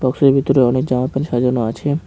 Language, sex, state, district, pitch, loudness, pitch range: Bengali, male, West Bengal, Cooch Behar, 130 Hz, -16 LUFS, 125-135 Hz